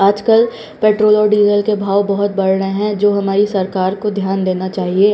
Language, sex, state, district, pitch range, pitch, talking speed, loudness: Hindi, female, Bihar, Patna, 195-210 Hz, 200 Hz, 200 wpm, -15 LUFS